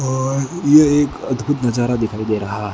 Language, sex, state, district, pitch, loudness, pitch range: Hindi, male, Rajasthan, Bikaner, 130 Hz, -17 LUFS, 110-145 Hz